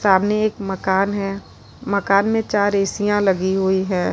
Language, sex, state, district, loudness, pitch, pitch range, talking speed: Hindi, female, Uttar Pradesh, Lalitpur, -19 LUFS, 200 Hz, 190-205 Hz, 160 wpm